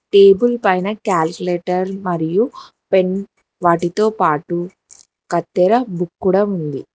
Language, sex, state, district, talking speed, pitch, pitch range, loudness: Telugu, female, Telangana, Hyderabad, 80 wpm, 185 Hz, 175-200 Hz, -17 LUFS